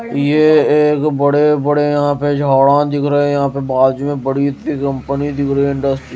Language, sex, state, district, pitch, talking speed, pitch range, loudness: Hindi, male, Odisha, Malkangiri, 145 Hz, 205 wpm, 140-145 Hz, -14 LUFS